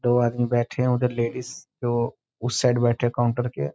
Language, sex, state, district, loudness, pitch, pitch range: Hindi, male, Bihar, Sitamarhi, -24 LUFS, 120 Hz, 120-125 Hz